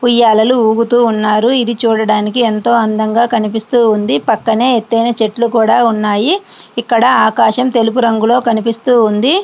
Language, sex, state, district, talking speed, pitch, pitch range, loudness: Telugu, female, Andhra Pradesh, Srikakulam, 120 wpm, 230 Hz, 220-240 Hz, -12 LUFS